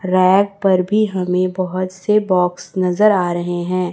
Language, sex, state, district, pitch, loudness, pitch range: Hindi, female, Chhattisgarh, Raipur, 185 Hz, -17 LUFS, 180-195 Hz